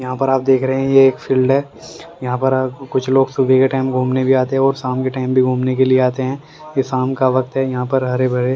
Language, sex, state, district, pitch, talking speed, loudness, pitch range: Hindi, male, Haryana, Rohtak, 130 Hz, 280 wpm, -16 LUFS, 130-135 Hz